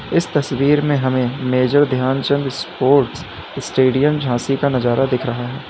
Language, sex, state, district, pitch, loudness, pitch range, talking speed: Hindi, male, Uttar Pradesh, Lalitpur, 135 Hz, -17 LUFS, 130-140 Hz, 145 wpm